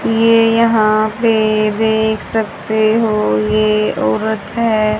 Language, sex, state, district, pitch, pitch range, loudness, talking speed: Hindi, female, Haryana, Charkhi Dadri, 220 Hz, 215-225 Hz, -14 LUFS, 110 wpm